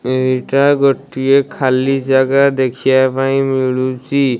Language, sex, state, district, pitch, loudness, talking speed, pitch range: Odia, male, Odisha, Malkangiri, 130 Hz, -14 LUFS, 110 wpm, 130-135 Hz